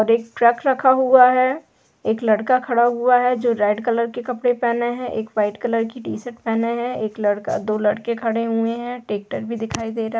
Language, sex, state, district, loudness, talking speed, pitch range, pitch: Hindi, female, Bihar, Gaya, -20 LUFS, 225 wpm, 225-245 Hz, 235 Hz